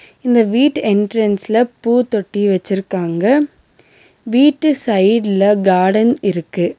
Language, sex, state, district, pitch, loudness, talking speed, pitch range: Tamil, female, Tamil Nadu, Nilgiris, 215 Hz, -15 LUFS, 80 wpm, 195-240 Hz